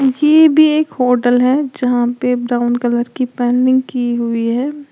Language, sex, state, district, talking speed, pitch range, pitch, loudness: Hindi, female, Uttar Pradesh, Lalitpur, 160 wpm, 245-280 Hz, 250 Hz, -14 LUFS